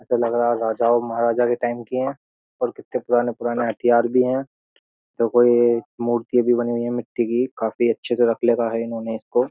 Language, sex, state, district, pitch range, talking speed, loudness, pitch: Hindi, male, Uttar Pradesh, Jyotiba Phule Nagar, 115-120 Hz, 215 wpm, -21 LUFS, 120 Hz